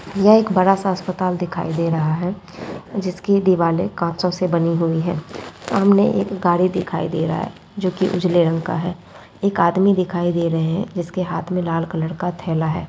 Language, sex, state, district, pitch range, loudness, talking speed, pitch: Hindi, female, Bihar, Muzaffarpur, 165-185 Hz, -19 LUFS, 190 wpm, 180 Hz